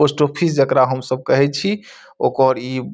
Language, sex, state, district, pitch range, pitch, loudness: Maithili, male, Bihar, Saharsa, 130-150 Hz, 135 Hz, -17 LUFS